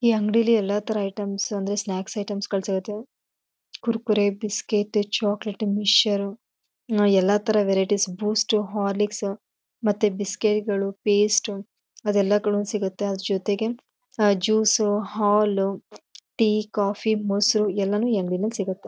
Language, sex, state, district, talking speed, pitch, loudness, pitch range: Kannada, female, Karnataka, Chamarajanagar, 110 wpm, 205 Hz, -23 LUFS, 200-215 Hz